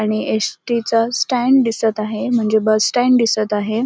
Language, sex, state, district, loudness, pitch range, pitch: Marathi, female, Maharashtra, Sindhudurg, -17 LUFS, 215-245 Hz, 225 Hz